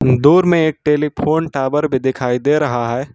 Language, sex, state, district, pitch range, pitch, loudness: Hindi, male, Jharkhand, Ranchi, 130-150 Hz, 145 Hz, -15 LUFS